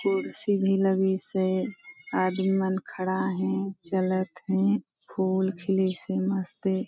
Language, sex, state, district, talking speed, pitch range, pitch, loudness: Hindi, female, Chhattisgarh, Balrampur, 130 wpm, 190-195 Hz, 190 Hz, -27 LUFS